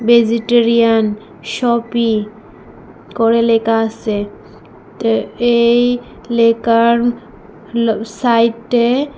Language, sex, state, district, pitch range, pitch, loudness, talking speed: Bengali, female, Tripura, West Tripura, 225-235 Hz, 230 Hz, -15 LUFS, 65 wpm